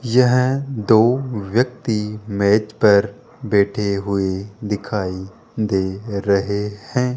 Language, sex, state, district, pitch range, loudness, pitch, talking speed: Hindi, male, Rajasthan, Jaipur, 100-120 Hz, -19 LUFS, 105 Hz, 90 wpm